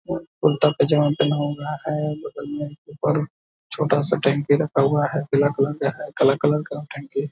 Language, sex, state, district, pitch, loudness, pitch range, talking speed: Hindi, male, Bihar, Purnia, 145 Hz, -22 LUFS, 145-150 Hz, 190 wpm